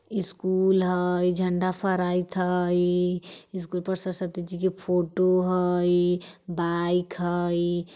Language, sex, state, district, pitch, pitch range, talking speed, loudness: Bajjika, female, Bihar, Vaishali, 180 Hz, 175-185 Hz, 105 wpm, -25 LUFS